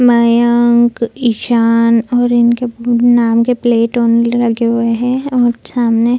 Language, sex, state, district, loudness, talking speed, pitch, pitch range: Hindi, female, Bihar, Lakhisarai, -12 LUFS, 135 wpm, 235 Hz, 235-240 Hz